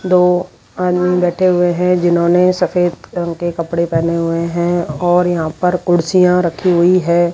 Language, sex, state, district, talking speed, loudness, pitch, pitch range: Hindi, female, Rajasthan, Jaipur, 165 wpm, -14 LUFS, 175 Hz, 170-180 Hz